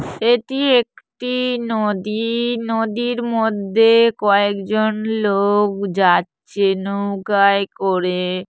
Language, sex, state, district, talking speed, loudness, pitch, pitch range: Bengali, female, West Bengal, Jhargram, 80 wpm, -18 LUFS, 210 Hz, 200-230 Hz